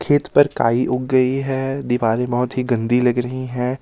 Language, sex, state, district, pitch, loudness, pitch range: Hindi, male, Himachal Pradesh, Shimla, 125 Hz, -19 LUFS, 125-135 Hz